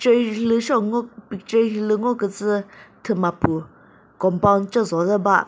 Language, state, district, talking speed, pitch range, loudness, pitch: Chakhesang, Nagaland, Dimapur, 165 wpm, 195-230 Hz, -21 LUFS, 210 Hz